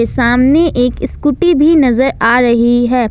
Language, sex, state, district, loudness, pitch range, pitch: Hindi, female, Jharkhand, Ranchi, -11 LUFS, 240-290 Hz, 250 Hz